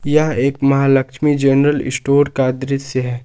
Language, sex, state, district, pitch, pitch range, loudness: Hindi, male, Jharkhand, Palamu, 140 Hz, 130-145 Hz, -16 LUFS